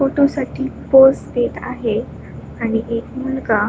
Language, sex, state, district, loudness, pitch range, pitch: Marathi, female, Maharashtra, Solapur, -17 LUFS, 230-270 Hz, 255 Hz